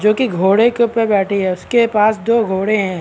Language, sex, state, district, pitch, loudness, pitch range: Hindi, male, Bihar, Vaishali, 215 Hz, -15 LUFS, 195-230 Hz